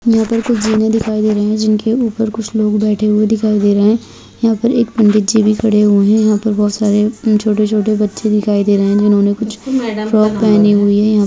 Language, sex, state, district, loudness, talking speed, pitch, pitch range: Hindi, female, Bihar, Purnia, -13 LUFS, 250 wpm, 215 Hz, 210-220 Hz